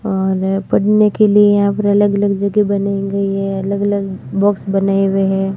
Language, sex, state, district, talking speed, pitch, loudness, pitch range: Hindi, female, Rajasthan, Barmer, 195 wpm, 200 Hz, -15 LUFS, 195-205 Hz